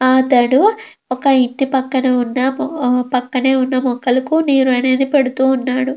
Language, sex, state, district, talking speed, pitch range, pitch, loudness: Telugu, female, Andhra Pradesh, Krishna, 120 wpm, 255-270 Hz, 260 Hz, -15 LUFS